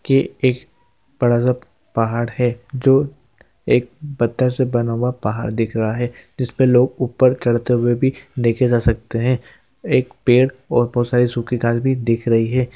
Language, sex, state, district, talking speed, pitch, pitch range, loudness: Hindi, male, Chhattisgarh, Jashpur, 170 wpm, 125 Hz, 120-130 Hz, -18 LUFS